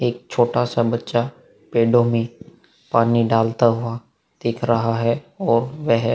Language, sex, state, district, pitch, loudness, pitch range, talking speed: Hindi, male, Bihar, Vaishali, 115 Hz, -20 LUFS, 115-120 Hz, 145 wpm